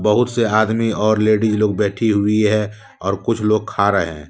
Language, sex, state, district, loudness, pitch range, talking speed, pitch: Hindi, male, Jharkhand, Deoghar, -17 LUFS, 105-110 Hz, 210 wpm, 110 Hz